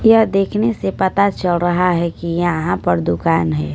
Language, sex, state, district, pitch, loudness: Hindi, female, Punjab, Kapurthala, 175 Hz, -17 LUFS